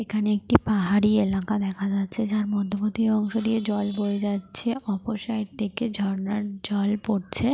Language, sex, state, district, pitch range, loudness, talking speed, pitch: Bengali, female, Jharkhand, Jamtara, 200-215 Hz, -25 LUFS, 150 wpm, 210 Hz